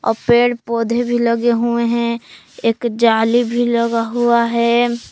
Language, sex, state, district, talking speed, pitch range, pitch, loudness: Hindi, female, Jharkhand, Palamu, 150 wpm, 235-240 Hz, 235 Hz, -16 LUFS